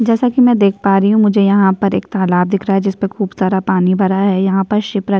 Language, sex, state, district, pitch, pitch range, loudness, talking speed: Hindi, female, Chhattisgarh, Kabirdham, 195 Hz, 190-205 Hz, -14 LUFS, 300 wpm